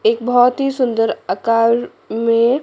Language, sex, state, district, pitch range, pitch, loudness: Hindi, female, Chandigarh, Chandigarh, 225-245 Hz, 235 Hz, -16 LUFS